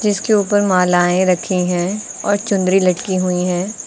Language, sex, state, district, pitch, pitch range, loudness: Hindi, female, Uttar Pradesh, Lucknow, 185 Hz, 180-205 Hz, -16 LUFS